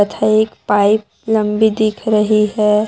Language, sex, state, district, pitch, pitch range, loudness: Hindi, female, Jharkhand, Deoghar, 215 Hz, 210-220 Hz, -15 LUFS